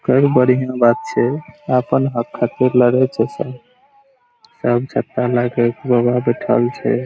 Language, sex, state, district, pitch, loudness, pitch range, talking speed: Maithili, male, Bihar, Araria, 125 Hz, -17 LUFS, 120-145 Hz, 125 wpm